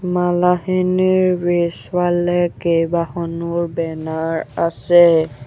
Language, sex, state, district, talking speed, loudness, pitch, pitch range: Assamese, male, Assam, Sonitpur, 55 wpm, -17 LUFS, 170 Hz, 165-180 Hz